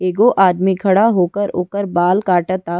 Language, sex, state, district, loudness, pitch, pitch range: Bhojpuri, female, Uttar Pradesh, Ghazipur, -15 LUFS, 185 Hz, 180-200 Hz